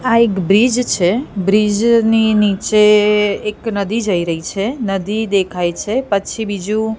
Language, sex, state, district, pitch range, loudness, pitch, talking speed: Gujarati, female, Gujarat, Gandhinagar, 195-225 Hz, -15 LUFS, 210 Hz, 145 wpm